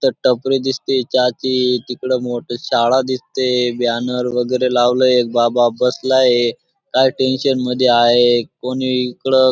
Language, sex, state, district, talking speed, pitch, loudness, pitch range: Marathi, male, Maharashtra, Dhule, 125 wpm, 125 Hz, -16 LUFS, 120-130 Hz